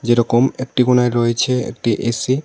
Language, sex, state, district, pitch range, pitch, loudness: Bengali, male, Tripura, West Tripura, 120-125 Hz, 120 Hz, -17 LUFS